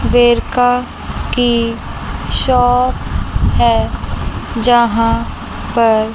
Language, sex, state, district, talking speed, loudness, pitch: Hindi, female, Chandigarh, Chandigarh, 60 wpm, -15 LUFS, 230 Hz